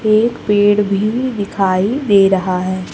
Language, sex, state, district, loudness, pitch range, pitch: Hindi, female, Chhattisgarh, Raipur, -15 LUFS, 190-215 Hz, 205 Hz